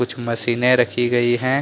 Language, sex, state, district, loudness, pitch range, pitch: Hindi, male, Jharkhand, Deoghar, -18 LUFS, 120-125 Hz, 120 Hz